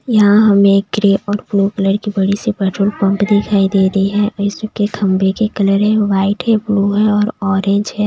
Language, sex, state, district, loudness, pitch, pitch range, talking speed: Hindi, female, Maharashtra, Mumbai Suburban, -14 LUFS, 200 Hz, 195-210 Hz, 200 wpm